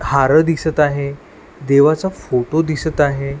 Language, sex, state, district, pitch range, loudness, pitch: Marathi, male, Maharashtra, Washim, 140-155 Hz, -16 LUFS, 145 Hz